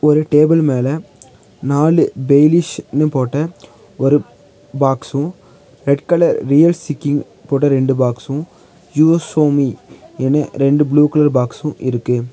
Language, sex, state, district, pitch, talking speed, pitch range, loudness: Tamil, male, Tamil Nadu, Nilgiris, 145 Hz, 105 wpm, 135-150 Hz, -15 LUFS